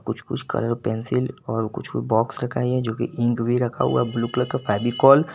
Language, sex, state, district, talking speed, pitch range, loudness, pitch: Hindi, male, Jharkhand, Garhwa, 270 wpm, 115-125 Hz, -23 LUFS, 120 Hz